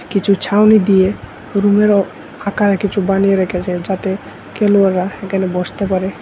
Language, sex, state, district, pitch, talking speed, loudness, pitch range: Bengali, male, Tripura, West Tripura, 195 Hz, 135 wpm, -15 LUFS, 190-205 Hz